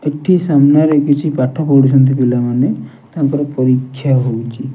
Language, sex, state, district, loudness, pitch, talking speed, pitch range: Odia, male, Odisha, Nuapada, -13 LUFS, 135 Hz, 115 wpm, 130-145 Hz